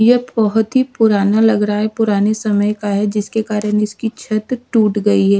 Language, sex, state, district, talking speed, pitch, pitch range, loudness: Hindi, female, Odisha, Sambalpur, 200 wpm, 215 Hz, 210-225 Hz, -16 LUFS